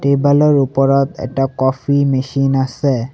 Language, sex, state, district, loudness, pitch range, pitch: Assamese, male, Assam, Sonitpur, -15 LUFS, 130-140 Hz, 135 Hz